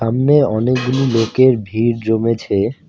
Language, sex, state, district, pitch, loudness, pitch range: Bengali, male, West Bengal, Alipurduar, 115 Hz, -15 LUFS, 110-130 Hz